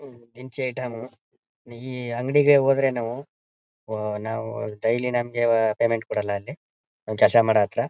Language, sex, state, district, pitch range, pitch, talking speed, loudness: Kannada, male, Karnataka, Mysore, 110-130 Hz, 120 Hz, 130 wpm, -23 LUFS